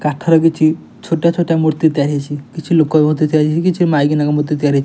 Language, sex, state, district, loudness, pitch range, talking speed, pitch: Odia, male, Odisha, Nuapada, -14 LUFS, 150-165 Hz, 210 wpm, 155 Hz